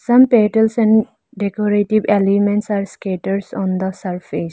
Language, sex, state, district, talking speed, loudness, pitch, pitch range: English, female, Arunachal Pradesh, Lower Dibang Valley, 135 wpm, -17 LUFS, 205 Hz, 195-220 Hz